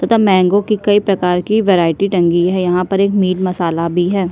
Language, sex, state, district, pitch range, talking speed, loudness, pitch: Hindi, female, Chhattisgarh, Sukma, 180-200 Hz, 235 wpm, -14 LUFS, 185 Hz